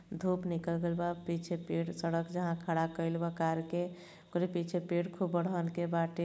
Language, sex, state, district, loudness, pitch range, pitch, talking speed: Bhojpuri, female, Uttar Pradesh, Gorakhpur, -35 LUFS, 165-175 Hz, 170 Hz, 190 wpm